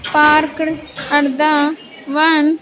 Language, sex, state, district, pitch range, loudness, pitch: English, female, Andhra Pradesh, Sri Satya Sai, 290-315 Hz, -15 LUFS, 305 Hz